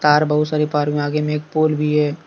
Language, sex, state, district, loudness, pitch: Hindi, male, Jharkhand, Deoghar, -18 LUFS, 150 Hz